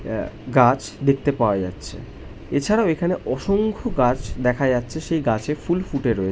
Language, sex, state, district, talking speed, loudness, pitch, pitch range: Bengali, male, West Bengal, North 24 Parganas, 140 wpm, -21 LUFS, 135 Hz, 115-160 Hz